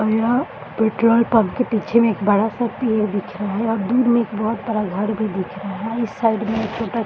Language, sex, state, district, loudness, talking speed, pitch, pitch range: Hindi, female, Bihar, Jahanabad, -20 LUFS, 270 wpm, 220 Hz, 210-230 Hz